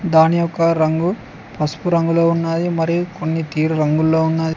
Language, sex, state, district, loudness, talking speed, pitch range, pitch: Telugu, male, Telangana, Mahabubabad, -17 LUFS, 145 wpm, 160-170 Hz, 165 Hz